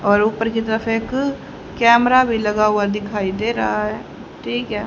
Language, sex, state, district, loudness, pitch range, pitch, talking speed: Hindi, female, Haryana, Jhajjar, -18 LUFS, 210-235 Hz, 220 Hz, 185 wpm